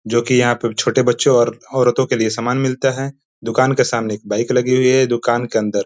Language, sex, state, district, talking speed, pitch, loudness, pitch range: Hindi, male, Bihar, East Champaran, 265 wpm, 120 Hz, -16 LUFS, 115-130 Hz